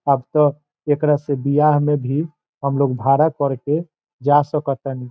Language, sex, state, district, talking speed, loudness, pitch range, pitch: Bhojpuri, male, Bihar, Saran, 150 wpm, -19 LUFS, 140-150 Hz, 145 Hz